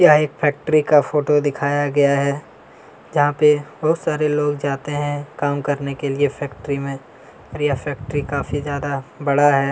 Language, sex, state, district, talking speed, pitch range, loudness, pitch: Hindi, male, Chhattisgarh, Kabirdham, 180 wpm, 140-150 Hz, -20 LUFS, 145 Hz